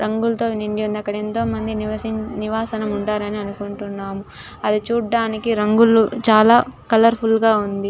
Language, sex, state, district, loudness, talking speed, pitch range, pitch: Telugu, female, Andhra Pradesh, Chittoor, -19 LUFS, 135 wpm, 210-225 Hz, 215 Hz